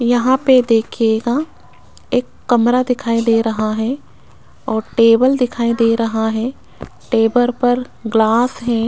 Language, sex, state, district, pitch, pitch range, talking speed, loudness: Hindi, female, Rajasthan, Jaipur, 235 Hz, 225-250 Hz, 130 wpm, -16 LUFS